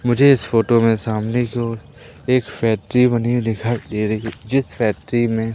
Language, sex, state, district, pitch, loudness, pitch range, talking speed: Hindi, male, Madhya Pradesh, Umaria, 115 Hz, -19 LUFS, 110-120 Hz, 195 wpm